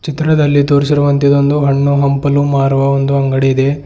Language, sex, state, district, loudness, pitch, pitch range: Kannada, male, Karnataka, Bidar, -12 LUFS, 140 Hz, 140-145 Hz